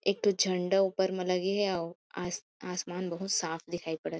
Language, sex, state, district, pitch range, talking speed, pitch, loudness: Chhattisgarhi, female, Chhattisgarh, Kabirdham, 175-195 Hz, 215 wpm, 180 Hz, -32 LUFS